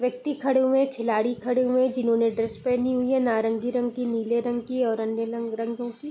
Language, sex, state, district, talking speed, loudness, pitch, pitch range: Hindi, female, Bihar, Purnia, 235 wpm, -25 LUFS, 240 Hz, 230-255 Hz